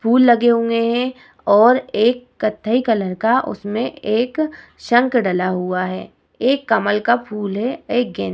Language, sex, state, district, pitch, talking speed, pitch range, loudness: Hindi, female, Bihar, Vaishali, 230 Hz, 165 wpm, 210-245 Hz, -18 LUFS